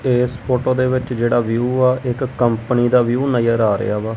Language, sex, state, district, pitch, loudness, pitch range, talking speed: Punjabi, male, Punjab, Kapurthala, 125 Hz, -17 LUFS, 115-125 Hz, 215 wpm